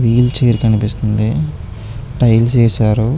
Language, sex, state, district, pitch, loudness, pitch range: Telugu, male, Andhra Pradesh, Chittoor, 115 Hz, -14 LUFS, 110-120 Hz